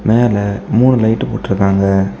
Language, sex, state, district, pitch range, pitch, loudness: Tamil, male, Tamil Nadu, Kanyakumari, 100-115 Hz, 100 Hz, -14 LUFS